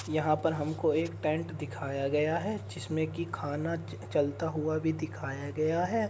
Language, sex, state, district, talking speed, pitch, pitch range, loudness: Hindi, male, Uttar Pradesh, Muzaffarnagar, 175 wpm, 155 Hz, 145-160 Hz, -32 LUFS